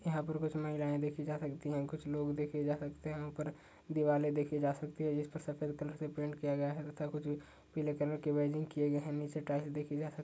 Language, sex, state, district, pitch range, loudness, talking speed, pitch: Hindi, male, Uttar Pradesh, Budaun, 145-150 Hz, -38 LUFS, 265 wpm, 150 Hz